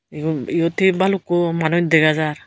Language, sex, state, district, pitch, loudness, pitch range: Chakma, female, Tripura, Unakoti, 165 Hz, -18 LUFS, 155-175 Hz